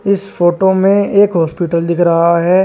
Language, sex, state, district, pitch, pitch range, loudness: Hindi, male, Uttar Pradesh, Shamli, 180 Hz, 170-195 Hz, -12 LUFS